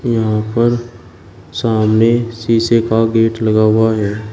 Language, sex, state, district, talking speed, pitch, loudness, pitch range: Hindi, male, Uttar Pradesh, Shamli, 125 wpm, 110 Hz, -14 LUFS, 110-115 Hz